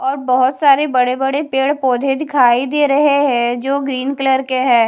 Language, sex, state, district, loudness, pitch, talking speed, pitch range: Hindi, female, Haryana, Charkhi Dadri, -15 LUFS, 270 Hz, 195 wpm, 255-280 Hz